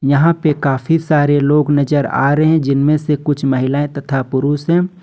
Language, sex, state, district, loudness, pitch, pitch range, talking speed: Hindi, male, Jharkhand, Ranchi, -15 LUFS, 145 Hz, 140-155 Hz, 190 wpm